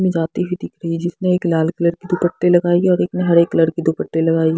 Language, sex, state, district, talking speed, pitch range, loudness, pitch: Hindi, female, Haryana, Jhajjar, 275 wpm, 165-180 Hz, -17 LUFS, 170 Hz